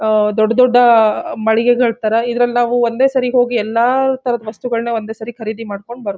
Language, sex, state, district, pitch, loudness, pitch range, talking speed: Kannada, female, Karnataka, Shimoga, 230 Hz, -15 LUFS, 220-245 Hz, 175 wpm